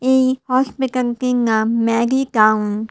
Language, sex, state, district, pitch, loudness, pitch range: Bengali, female, Tripura, West Tripura, 245 Hz, -17 LUFS, 220-260 Hz